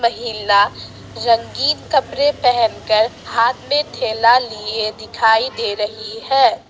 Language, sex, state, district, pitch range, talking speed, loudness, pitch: Hindi, female, Assam, Sonitpur, 220-250 Hz, 105 wpm, -17 LUFS, 230 Hz